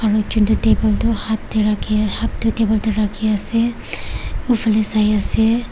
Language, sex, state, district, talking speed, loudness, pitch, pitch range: Nagamese, female, Nagaland, Kohima, 125 wpm, -17 LUFS, 220 Hz, 215-225 Hz